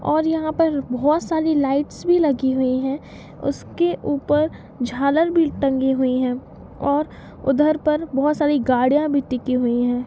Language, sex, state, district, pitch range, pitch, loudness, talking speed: Hindi, female, Bihar, East Champaran, 260-310 Hz, 280 Hz, -20 LUFS, 160 wpm